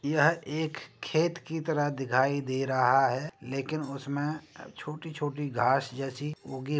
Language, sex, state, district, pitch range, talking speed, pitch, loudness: Hindi, male, Uttar Pradesh, Jyotiba Phule Nagar, 135-155 Hz, 140 wpm, 145 Hz, -30 LUFS